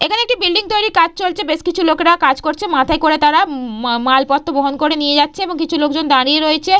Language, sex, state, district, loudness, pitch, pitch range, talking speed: Bengali, female, West Bengal, Purulia, -14 LUFS, 310 Hz, 290-360 Hz, 220 wpm